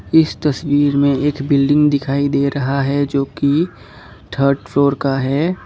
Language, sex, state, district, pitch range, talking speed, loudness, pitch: Hindi, male, Assam, Kamrup Metropolitan, 135-145 Hz, 160 wpm, -16 LUFS, 140 Hz